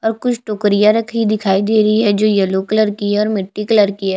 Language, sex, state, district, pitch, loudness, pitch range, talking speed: Hindi, female, Chhattisgarh, Jashpur, 210 Hz, -15 LUFS, 205-220 Hz, 275 wpm